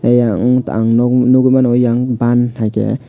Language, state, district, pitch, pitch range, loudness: Kokborok, Tripura, West Tripura, 120 Hz, 120-125 Hz, -13 LUFS